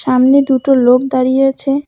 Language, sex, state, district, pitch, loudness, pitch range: Bengali, female, West Bengal, Cooch Behar, 265 Hz, -11 LUFS, 255-275 Hz